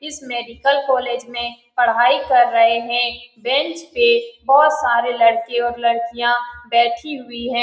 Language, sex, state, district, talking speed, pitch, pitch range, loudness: Hindi, female, Bihar, Saran, 135 wpm, 240 Hz, 235-280 Hz, -17 LUFS